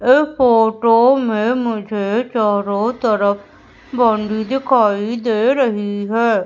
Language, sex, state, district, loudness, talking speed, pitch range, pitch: Hindi, female, Madhya Pradesh, Umaria, -16 LUFS, 100 wpm, 215-250 Hz, 230 Hz